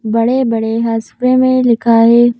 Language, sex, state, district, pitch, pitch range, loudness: Hindi, female, Madhya Pradesh, Bhopal, 235 Hz, 230-250 Hz, -12 LUFS